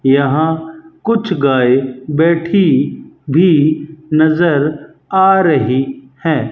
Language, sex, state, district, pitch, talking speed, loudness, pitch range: Hindi, male, Rajasthan, Bikaner, 155 Hz, 85 wpm, -14 LUFS, 135-165 Hz